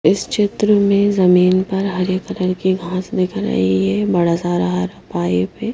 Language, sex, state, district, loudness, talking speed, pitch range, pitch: Hindi, female, Haryana, Jhajjar, -17 LUFS, 180 wpm, 170-200 Hz, 185 Hz